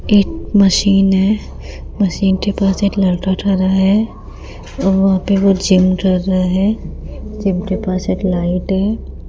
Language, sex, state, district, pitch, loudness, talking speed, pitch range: Hindi, female, Rajasthan, Jaipur, 190 Hz, -15 LUFS, 155 wpm, 185-200 Hz